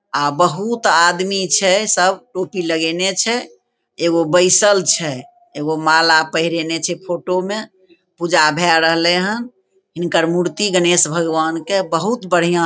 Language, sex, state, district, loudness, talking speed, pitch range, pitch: Maithili, female, Bihar, Begusarai, -15 LUFS, 135 wpm, 165-190 Hz, 175 Hz